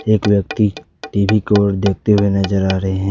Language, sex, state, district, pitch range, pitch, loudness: Hindi, male, Jharkhand, Ranchi, 95-105 Hz, 100 Hz, -16 LUFS